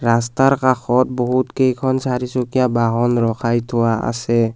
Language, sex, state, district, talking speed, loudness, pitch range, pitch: Assamese, male, Assam, Kamrup Metropolitan, 120 wpm, -18 LUFS, 115-130 Hz, 120 Hz